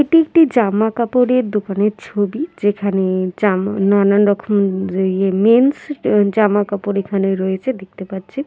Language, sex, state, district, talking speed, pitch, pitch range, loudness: Bengali, female, West Bengal, Jhargram, 125 wpm, 205 Hz, 195-235 Hz, -16 LUFS